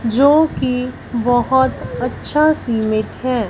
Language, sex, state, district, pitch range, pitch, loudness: Hindi, female, Punjab, Fazilka, 235-265 Hz, 250 Hz, -17 LUFS